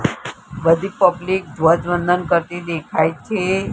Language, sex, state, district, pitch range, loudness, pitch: Gujarati, female, Gujarat, Gandhinagar, 165-185 Hz, -18 LUFS, 175 Hz